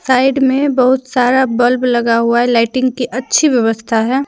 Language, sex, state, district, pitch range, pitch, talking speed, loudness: Hindi, female, Jharkhand, Deoghar, 235-260 Hz, 255 Hz, 180 wpm, -13 LUFS